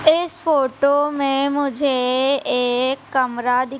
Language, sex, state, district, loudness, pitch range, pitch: Hindi, female, Madhya Pradesh, Umaria, -19 LUFS, 255-285 Hz, 275 Hz